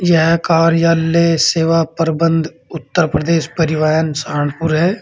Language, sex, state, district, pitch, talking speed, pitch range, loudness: Hindi, male, Uttar Pradesh, Saharanpur, 165 Hz, 110 wpm, 160-165 Hz, -15 LUFS